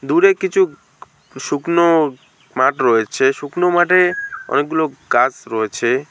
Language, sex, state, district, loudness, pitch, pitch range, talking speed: Bengali, male, West Bengal, Alipurduar, -16 LUFS, 165 Hz, 135-185 Hz, 100 wpm